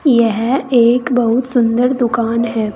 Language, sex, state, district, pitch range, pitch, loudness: Hindi, female, Uttar Pradesh, Saharanpur, 230-250 Hz, 235 Hz, -14 LUFS